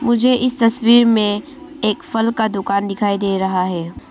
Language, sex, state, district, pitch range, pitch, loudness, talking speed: Hindi, female, Arunachal Pradesh, Longding, 200-240 Hz, 220 Hz, -17 LUFS, 175 wpm